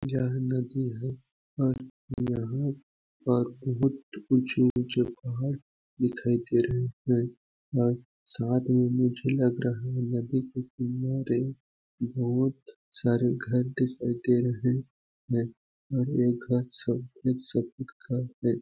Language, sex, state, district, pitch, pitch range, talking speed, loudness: Hindi, male, Chhattisgarh, Balrampur, 125 Hz, 120-130 Hz, 115 wpm, -29 LUFS